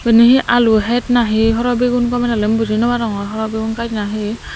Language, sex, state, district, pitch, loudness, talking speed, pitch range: Chakma, female, Tripura, Dhalai, 230 Hz, -15 LUFS, 210 wpm, 220-240 Hz